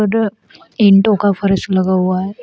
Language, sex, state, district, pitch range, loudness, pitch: Hindi, female, Uttar Pradesh, Shamli, 190-210 Hz, -14 LUFS, 200 Hz